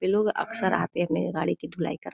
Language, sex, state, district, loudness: Hindi, female, Uttar Pradesh, Gorakhpur, -27 LUFS